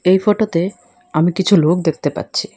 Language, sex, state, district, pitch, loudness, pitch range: Bengali, female, Assam, Hailakandi, 180 Hz, -16 LUFS, 170-210 Hz